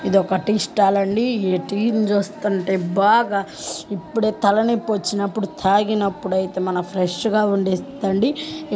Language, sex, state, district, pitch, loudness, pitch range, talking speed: Telugu, female, Andhra Pradesh, Guntur, 200 Hz, -20 LUFS, 190-215 Hz, 115 wpm